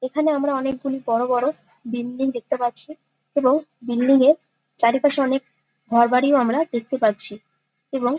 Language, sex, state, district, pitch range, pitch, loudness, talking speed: Bengali, female, West Bengal, Jalpaiguri, 240-285 Hz, 260 Hz, -21 LUFS, 145 wpm